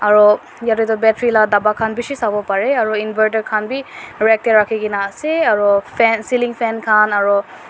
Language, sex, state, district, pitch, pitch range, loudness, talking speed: Nagamese, female, Nagaland, Dimapur, 220 Hz, 210-230 Hz, -16 LUFS, 185 wpm